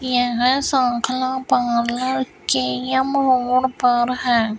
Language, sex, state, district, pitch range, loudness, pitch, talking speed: Hindi, female, Rajasthan, Bikaner, 240-260 Hz, -19 LUFS, 250 Hz, 80 wpm